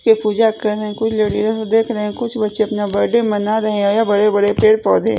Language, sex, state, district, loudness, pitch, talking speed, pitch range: Hindi, female, Chhattisgarh, Raipur, -16 LUFS, 215 Hz, 245 wpm, 210-220 Hz